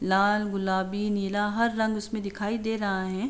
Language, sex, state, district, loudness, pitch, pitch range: Hindi, female, Uttar Pradesh, Jalaun, -27 LUFS, 205 Hz, 195-220 Hz